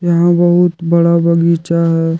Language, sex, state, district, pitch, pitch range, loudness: Hindi, male, Jharkhand, Deoghar, 170 Hz, 170-175 Hz, -12 LUFS